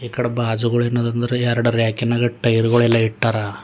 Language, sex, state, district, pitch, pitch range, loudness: Kannada, male, Karnataka, Bidar, 120 Hz, 115-120 Hz, -18 LUFS